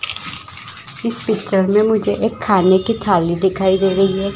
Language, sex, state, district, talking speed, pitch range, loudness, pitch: Chhattisgarhi, female, Chhattisgarh, Jashpur, 180 wpm, 190-215 Hz, -16 LUFS, 195 Hz